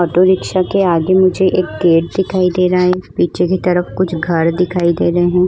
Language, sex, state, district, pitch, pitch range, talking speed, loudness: Hindi, female, Goa, North and South Goa, 180 Hz, 175-185 Hz, 210 wpm, -14 LUFS